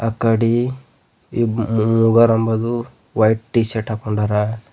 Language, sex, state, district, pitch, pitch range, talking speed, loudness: Kannada, male, Karnataka, Bidar, 115 Hz, 110-115 Hz, 90 wpm, -18 LUFS